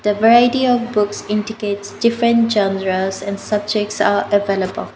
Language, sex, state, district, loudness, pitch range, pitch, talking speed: English, female, Nagaland, Dimapur, -17 LUFS, 200-230 Hz, 210 Hz, 135 wpm